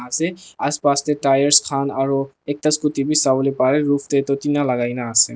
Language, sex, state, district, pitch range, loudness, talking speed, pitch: Nagamese, male, Nagaland, Dimapur, 135-145 Hz, -18 LUFS, 200 wpm, 140 Hz